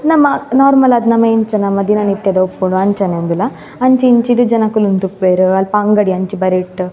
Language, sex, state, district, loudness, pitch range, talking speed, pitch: Tulu, female, Karnataka, Dakshina Kannada, -12 LUFS, 185-235 Hz, 175 wpm, 205 Hz